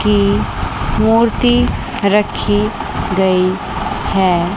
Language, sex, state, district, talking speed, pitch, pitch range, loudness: Hindi, female, Chandigarh, Chandigarh, 65 wpm, 195 Hz, 180-210 Hz, -15 LUFS